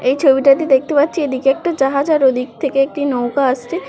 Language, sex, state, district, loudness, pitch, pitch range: Bengali, female, West Bengal, Kolkata, -15 LUFS, 275 Hz, 265-290 Hz